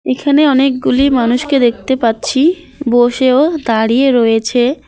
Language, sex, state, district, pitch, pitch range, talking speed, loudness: Bengali, female, West Bengal, Alipurduar, 255 Hz, 240-280 Hz, 110 wpm, -12 LUFS